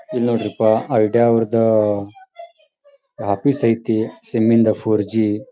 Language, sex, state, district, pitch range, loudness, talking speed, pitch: Kannada, male, Karnataka, Dharwad, 110-135 Hz, -18 LUFS, 100 wpm, 115 Hz